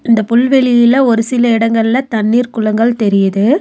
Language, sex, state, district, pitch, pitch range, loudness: Tamil, female, Tamil Nadu, Nilgiris, 230 Hz, 225-245 Hz, -11 LUFS